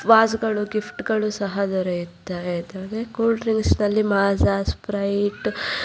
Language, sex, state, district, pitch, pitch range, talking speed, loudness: Kannada, female, Karnataka, Bangalore, 205 Hz, 185-220 Hz, 135 wpm, -22 LUFS